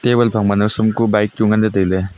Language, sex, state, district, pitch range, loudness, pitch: Wancho, male, Arunachal Pradesh, Longding, 100-110 Hz, -16 LUFS, 110 Hz